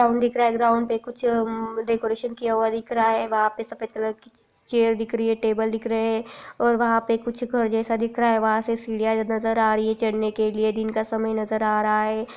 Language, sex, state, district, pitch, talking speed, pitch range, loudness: Hindi, female, Chhattisgarh, Raigarh, 225 Hz, 260 wpm, 220-230 Hz, -23 LUFS